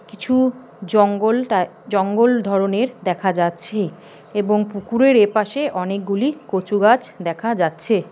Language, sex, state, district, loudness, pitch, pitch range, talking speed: Bengali, female, West Bengal, Paschim Medinipur, -19 LUFS, 210 Hz, 190-235 Hz, 105 wpm